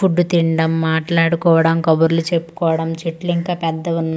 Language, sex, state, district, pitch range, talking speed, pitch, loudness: Telugu, female, Andhra Pradesh, Manyam, 165-170 Hz, 130 wpm, 165 Hz, -17 LUFS